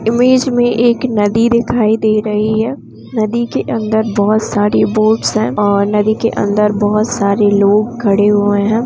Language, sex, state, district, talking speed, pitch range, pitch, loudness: Hindi, female, Bihar, Vaishali, 170 wpm, 205-230 Hz, 215 Hz, -13 LUFS